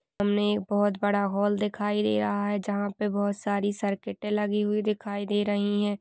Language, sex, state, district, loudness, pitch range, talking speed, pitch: Hindi, female, Chhattisgarh, Balrampur, -27 LUFS, 205-210 Hz, 190 wpm, 205 Hz